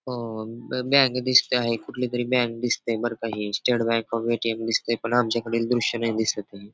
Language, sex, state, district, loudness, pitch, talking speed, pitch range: Marathi, male, Maharashtra, Pune, -24 LUFS, 115 Hz, 195 wpm, 115-120 Hz